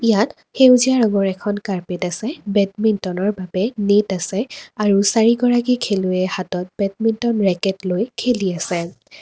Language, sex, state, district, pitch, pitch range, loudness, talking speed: Assamese, female, Assam, Kamrup Metropolitan, 205 Hz, 190-230 Hz, -19 LUFS, 125 wpm